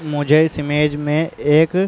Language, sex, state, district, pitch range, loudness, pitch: Hindi, male, Uttar Pradesh, Muzaffarnagar, 150-160 Hz, -17 LUFS, 150 Hz